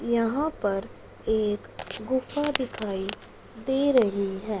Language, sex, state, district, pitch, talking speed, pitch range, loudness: Hindi, female, Punjab, Fazilka, 225 Hz, 105 wpm, 205-260 Hz, -27 LUFS